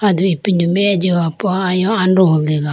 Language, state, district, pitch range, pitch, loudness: Idu Mishmi, Arunachal Pradesh, Lower Dibang Valley, 170-190 Hz, 185 Hz, -15 LUFS